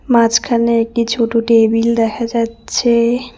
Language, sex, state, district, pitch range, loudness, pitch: Bengali, female, West Bengal, Cooch Behar, 230-235 Hz, -14 LUFS, 230 Hz